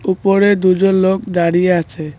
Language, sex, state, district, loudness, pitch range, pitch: Bengali, male, West Bengal, Cooch Behar, -14 LUFS, 175-195 Hz, 185 Hz